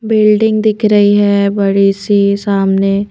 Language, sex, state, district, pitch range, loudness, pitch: Hindi, female, Himachal Pradesh, Shimla, 200-210 Hz, -11 LUFS, 205 Hz